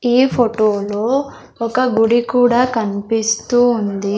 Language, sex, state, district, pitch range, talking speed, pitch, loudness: Telugu, female, Andhra Pradesh, Sri Satya Sai, 215-245 Hz, 100 wpm, 230 Hz, -16 LUFS